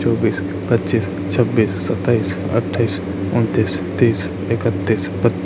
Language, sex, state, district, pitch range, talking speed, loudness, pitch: Hindi, male, Chhattisgarh, Raipur, 95-115 Hz, 110 wpm, -19 LUFS, 100 Hz